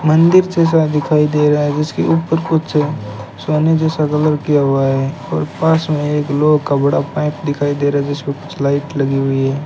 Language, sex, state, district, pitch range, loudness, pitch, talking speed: Hindi, male, Rajasthan, Bikaner, 140-155 Hz, -15 LUFS, 150 Hz, 205 wpm